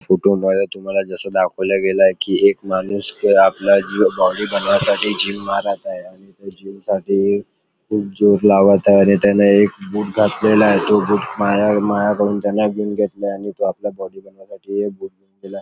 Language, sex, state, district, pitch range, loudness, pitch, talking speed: Marathi, male, Maharashtra, Chandrapur, 95-105 Hz, -16 LUFS, 100 Hz, 155 wpm